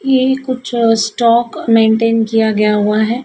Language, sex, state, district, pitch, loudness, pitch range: Hindi, female, Madhya Pradesh, Dhar, 230 Hz, -13 LUFS, 220-250 Hz